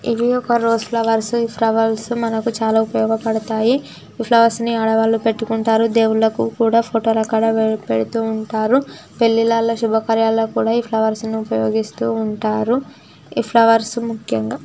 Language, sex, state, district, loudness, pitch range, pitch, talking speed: Telugu, female, Telangana, Nalgonda, -17 LUFS, 220-230 Hz, 225 Hz, 145 wpm